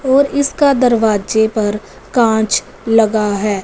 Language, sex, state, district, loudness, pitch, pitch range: Hindi, female, Punjab, Fazilka, -14 LUFS, 220 Hz, 210-260 Hz